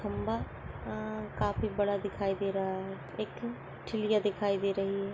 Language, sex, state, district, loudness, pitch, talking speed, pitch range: Hindi, female, Uttar Pradesh, Ghazipur, -34 LUFS, 200 Hz, 165 wpm, 195-215 Hz